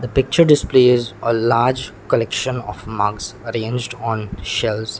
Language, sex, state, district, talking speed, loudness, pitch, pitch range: English, male, Sikkim, Gangtok, 120 wpm, -18 LUFS, 115 Hz, 105-125 Hz